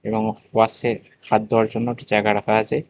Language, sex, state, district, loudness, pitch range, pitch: Bengali, male, Tripura, West Tripura, -21 LUFS, 110-115 Hz, 110 Hz